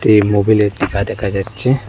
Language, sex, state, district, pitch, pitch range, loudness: Bengali, male, Assam, Hailakandi, 105 Hz, 100-110 Hz, -15 LUFS